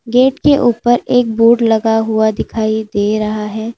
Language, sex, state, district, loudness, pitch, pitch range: Hindi, female, Uttar Pradesh, Lalitpur, -13 LUFS, 225 Hz, 220-240 Hz